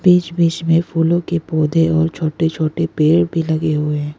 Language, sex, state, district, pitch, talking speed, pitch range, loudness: Hindi, female, Arunachal Pradesh, Lower Dibang Valley, 165 Hz, 200 wpm, 155-170 Hz, -17 LUFS